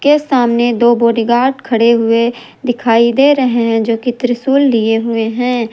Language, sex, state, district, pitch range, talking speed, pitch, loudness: Hindi, female, Jharkhand, Ranchi, 230-250 Hz, 170 wpm, 235 Hz, -12 LUFS